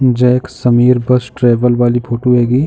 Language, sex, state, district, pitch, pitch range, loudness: Hindi, male, Uttar Pradesh, Jalaun, 125 Hz, 120-125 Hz, -12 LUFS